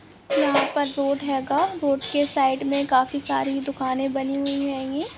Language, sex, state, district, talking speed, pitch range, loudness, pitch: Hindi, female, Goa, North and South Goa, 175 wpm, 270-285 Hz, -23 LUFS, 280 Hz